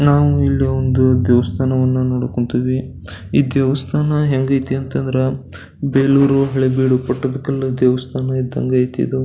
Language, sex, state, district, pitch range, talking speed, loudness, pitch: Kannada, male, Karnataka, Belgaum, 125-135 Hz, 110 wpm, -17 LUFS, 130 Hz